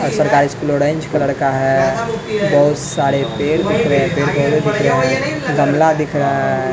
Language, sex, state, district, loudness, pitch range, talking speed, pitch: Hindi, male, Bihar, West Champaran, -15 LUFS, 140-155 Hz, 180 wpm, 145 Hz